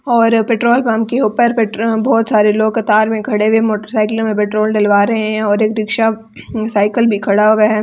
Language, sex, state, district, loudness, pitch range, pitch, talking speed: Hindi, female, Delhi, New Delhi, -14 LUFS, 215-225 Hz, 220 Hz, 205 wpm